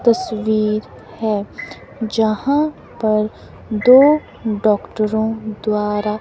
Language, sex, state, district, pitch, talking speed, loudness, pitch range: Hindi, female, Himachal Pradesh, Shimla, 215 Hz, 70 wpm, -18 LUFS, 215-230 Hz